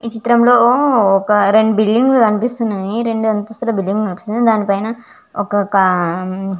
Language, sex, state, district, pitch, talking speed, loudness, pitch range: Telugu, female, Andhra Pradesh, Visakhapatnam, 215 Hz, 135 wpm, -14 LUFS, 200-235 Hz